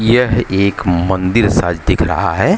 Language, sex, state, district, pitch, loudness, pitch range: Hindi, male, Maharashtra, Mumbai Suburban, 95 Hz, -14 LUFS, 90-110 Hz